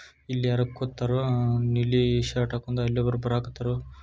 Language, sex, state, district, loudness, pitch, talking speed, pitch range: Kannada, male, Karnataka, Shimoga, -27 LUFS, 120 Hz, 150 wpm, 120-125 Hz